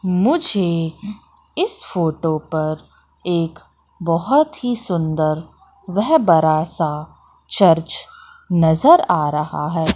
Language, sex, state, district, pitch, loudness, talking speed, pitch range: Hindi, female, Madhya Pradesh, Katni, 170 Hz, -18 LUFS, 95 wpm, 160-210 Hz